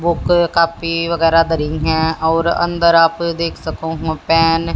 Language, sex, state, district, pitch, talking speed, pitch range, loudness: Hindi, female, Haryana, Jhajjar, 165 Hz, 165 wpm, 160-170 Hz, -15 LUFS